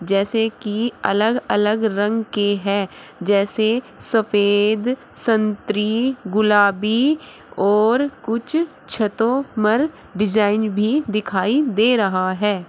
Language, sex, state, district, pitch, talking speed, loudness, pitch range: Hindi, female, Uttar Pradesh, Shamli, 215 Hz, 100 wpm, -19 LUFS, 205-230 Hz